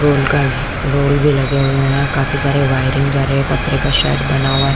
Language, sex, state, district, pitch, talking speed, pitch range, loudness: Hindi, female, Chhattisgarh, Bastar, 140 Hz, 240 wpm, 135-140 Hz, -15 LUFS